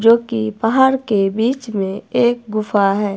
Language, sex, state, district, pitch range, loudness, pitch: Hindi, female, Himachal Pradesh, Shimla, 205-240 Hz, -17 LUFS, 225 Hz